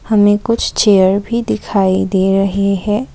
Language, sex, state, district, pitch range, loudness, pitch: Hindi, female, Assam, Kamrup Metropolitan, 195-210 Hz, -14 LUFS, 200 Hz